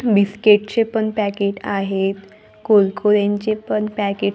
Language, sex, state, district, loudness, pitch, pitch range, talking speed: Marathi, female, Maharashtra, Gondia, -18 LUFS, 205 Hz, 200-215 Hz, 125 wpm